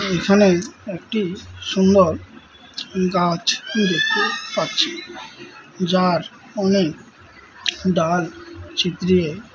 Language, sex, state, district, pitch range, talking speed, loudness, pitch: Bengali, male, West Bengal, Malda, 175-210 Hz, 65 wpm, -19 LUFS, 185 Hz